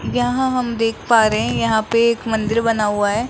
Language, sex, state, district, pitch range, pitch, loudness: Hindi, male, Rajasthan, Jaipur, 220-235 Hz, 230 Hz, -18 LUFS